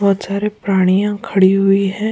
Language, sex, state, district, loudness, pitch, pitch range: Hindi, female, Goa, North and South Goa, -15 LUFS, 195 Hz, 195-205 Hz